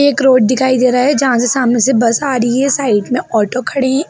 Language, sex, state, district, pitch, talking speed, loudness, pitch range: Hindi, female, Bihar, Saran, 255 Hz, 280 wpm, -13 LUFS, 240-270 Hz